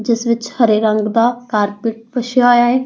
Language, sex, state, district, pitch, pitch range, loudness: Punjabi, female, Punjab, Fazilka, 235 Hz, 220-245 Hz, -15 LUFS